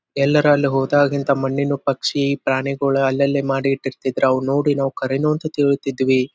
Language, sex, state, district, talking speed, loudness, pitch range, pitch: Kannada, male, Karnataka, Dharwad, 130 wpm, -19 LUFS, 135-140 Hz, 140 Hz